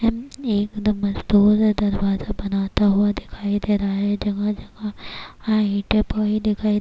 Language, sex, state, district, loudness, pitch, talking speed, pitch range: Urdu, female, Bihar, Kishanganj, -21 LUFS, 210 Hz, 150 wpm, 205-215 Hz